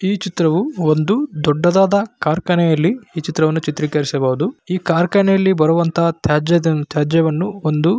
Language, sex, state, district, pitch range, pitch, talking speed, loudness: Kannada, male, Karnataka, Bellary, 155-190 Hz, 165 Hz, 115 wpm, -16 LUFS